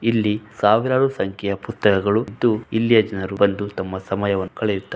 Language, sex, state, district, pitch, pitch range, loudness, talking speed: Kannada, male, Karnataka, Shimoga, 100 Hz, 100-110 Hz, -20 LUFS, 145 wpm